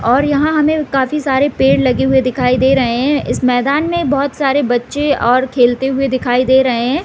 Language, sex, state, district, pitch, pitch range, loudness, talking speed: Hindi, female, Bihar, Gopalganj, 265 Hz, 250-285 Hz, -14 LUFS, 215 wpm